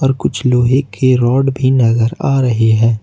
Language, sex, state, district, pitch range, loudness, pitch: Hindi, male, Jharkhand, Ranchi, 115-135 Hz, -13 LUFS, 125 Hz